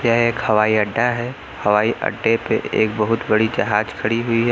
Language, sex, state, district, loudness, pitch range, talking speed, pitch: Hindi, male, Uttar Pradesh, Lucknow, -19 LUFS, 110-115 Hz, 200 wpm, 115 Hz